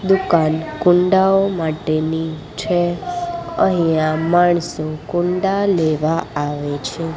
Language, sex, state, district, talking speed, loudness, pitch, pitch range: Gujarati, female, Gujarat, Gandhinagar, 85 wpm, -18 LUFS, 165 Hz, 155-185 Hz